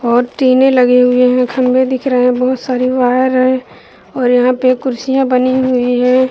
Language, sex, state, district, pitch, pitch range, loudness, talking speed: Hindi, female, Uttar Pradesh, Budaun, 255 Hz, 250-260 Hz, -12 LUFS, 190 wpm